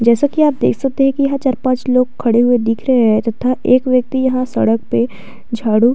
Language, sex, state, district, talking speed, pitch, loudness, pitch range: Hindi, female, Uttar Pradesh, Jalaun, 240 wpm, 250 Hz, -15 LUFS, 230-260 Hz